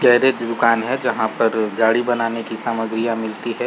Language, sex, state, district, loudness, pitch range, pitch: Hindi, male, Bihar, Saran, -19 LUFS, 110-120 Hz, 115 Hz